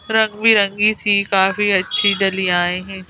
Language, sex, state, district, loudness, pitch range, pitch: Hindi, female, Madhya Pradesh, Bhopal, -16 LUFS, 190-210 Hz, 200 Hz